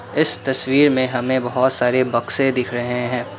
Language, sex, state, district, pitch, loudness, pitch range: Hindi, male, Assam, Kamrup Metropolitan, 130 Hz, -18 LUFS, 120-130 Hz